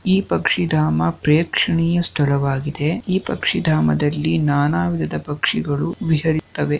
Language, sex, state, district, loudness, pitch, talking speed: Kannada, male, Karnataka, Shimoga, -19 LUFS, 145 Hz, 90 wpm